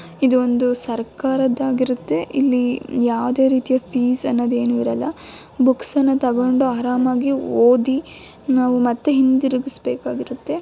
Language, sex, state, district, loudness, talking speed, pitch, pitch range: Kannada, female, Karnataka, Dakshina Kannada, -19 LUFS, 105 wpm, 255 Hz, 245-265 Hz